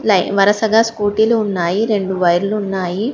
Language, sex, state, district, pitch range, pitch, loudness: Telugu, female, Telangana, Hyderabad, 190-220 Hz, 205 Hz, -16 LUFS